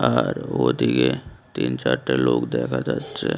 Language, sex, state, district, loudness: Bengali, male, Tripura, West Tripura, -22 LUFS